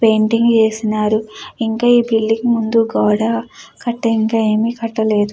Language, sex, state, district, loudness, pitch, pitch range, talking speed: Telugu, female, Andhra Pradesh, Chittoor, -16 LUFS, 225 Hz, 220-230 Hz, 125 wpm